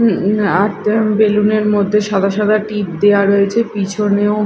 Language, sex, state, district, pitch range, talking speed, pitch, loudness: Bengali, female, Odisha, Malkangiri, 200-210 Hz, 175 wpm, 210 Hz, -14 LUFS